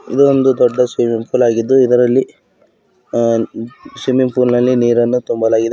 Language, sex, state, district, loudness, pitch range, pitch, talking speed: Kannada, male, Karnataka, Bidar, -14 LUFS, 115-130 Hz, 125 Hz, 125 wpm